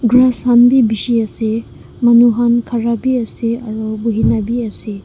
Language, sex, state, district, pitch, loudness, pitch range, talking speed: Nagamese, female, Nagaland, Dimapur, 235 Hz, -14 LUFS, 220-240 Hz, 165 wpm